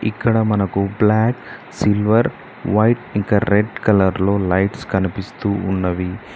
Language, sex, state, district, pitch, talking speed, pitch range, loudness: Telugu, male, Telangana, Mahabubabad, 105 Hz, 115 wpm, 95-110 Hz, -18 LUFS